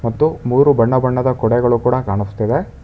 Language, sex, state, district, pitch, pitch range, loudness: Kannada, male, Karnataka, Bangalore, 125 Hz, 115-130 Hz, -16 LUFS